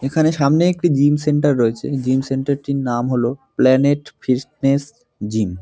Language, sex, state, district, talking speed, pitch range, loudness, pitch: Bengali, male, West Bengal, North 24 Parganas, 170 wpm, 130-145 Hz, -18 LUFS, 135 Hz